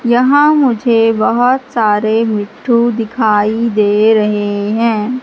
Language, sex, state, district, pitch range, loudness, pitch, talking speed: Hindi, female, Madhya Pradesh, Katni, 215-240 Hz, -12 LUFS, 225 Hz, 105 wpm